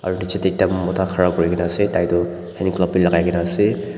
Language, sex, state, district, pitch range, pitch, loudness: Nagamese, male, Nagaland, Dimapur, 85-95 Hz, 90 Hz, -19 LUFS